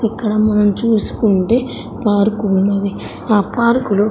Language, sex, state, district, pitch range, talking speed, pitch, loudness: Telugu, female, Andhra Pradesh, Sri Satya Sai, 200-225 Hz, 115 wpm, 210 Hz, -15 LUFS